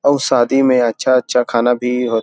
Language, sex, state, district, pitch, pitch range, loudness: Chhattisgarhi, male, Chhattisgarh, Rajnandgaon, 125 Hz, 120-130 Hz, -15 LUFS